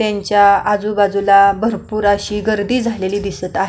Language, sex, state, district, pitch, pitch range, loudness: Marathi, female, Maharashtra, Pune, 205 Hz, 200-210 Hz, -15 LUFS